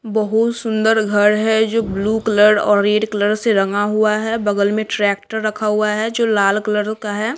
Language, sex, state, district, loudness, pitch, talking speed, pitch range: Hindi, female, Bihar, West Champaran, -16 LUFS, 215 Hz, 205 wpm, 205-220 Hz